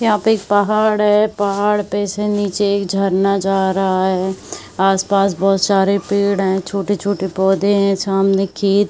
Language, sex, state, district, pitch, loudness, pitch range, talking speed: Hindi, female, Chhattisgarh, Bilaspur, 200 Hz, -16 LUFS, 195-205 Hz, 160 wpm